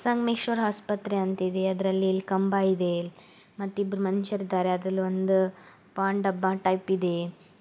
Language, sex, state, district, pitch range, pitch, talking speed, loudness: Kannada, female, Karnataka, Gulbarga, 185-200 Hz, 190 Hz, 135 wpm, -27 LUFS